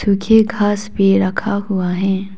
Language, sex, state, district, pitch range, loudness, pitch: Hindi, female, Arunachal Pradesh, Papum Pare, 190-205 Hz, -16 LUFS, 200 Hz